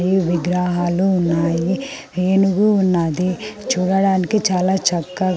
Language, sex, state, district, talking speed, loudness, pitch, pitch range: Telugu, female, Andhra Pradesh, Sri Satya Sai, 80 wpm, -18 LUFS, 185 Hz, 175-190 Hz